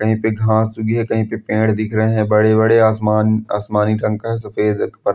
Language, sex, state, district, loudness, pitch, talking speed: Hindi, male, Andhra Pradesh, Anantapur, -16 LUFS, 110 Hz, 175 wpm